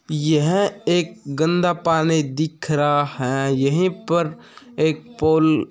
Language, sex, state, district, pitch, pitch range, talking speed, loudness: Hindi, male, Rajasthan, Churu, 160 Hz, 150-170 Hz, 125 wpm, -20 LUFS